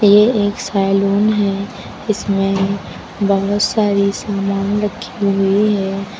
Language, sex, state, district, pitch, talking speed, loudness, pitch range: Hindi, female, Uttar Pradesh, Lucknow, 200 Hz, 105 wpm, -16 LUFS, 195-205 Hz